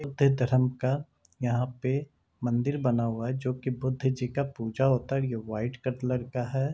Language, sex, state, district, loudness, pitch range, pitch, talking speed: Hindi, male, Bihar, Jamui, -29 LUFS, 125-135 Hz, 130 Hz, 185 wpm